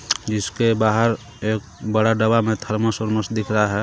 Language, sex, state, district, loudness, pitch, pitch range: Hindi, male, Jharkhand, Garhwa, -20 LUFS, 110 Hz, 110-115 Hz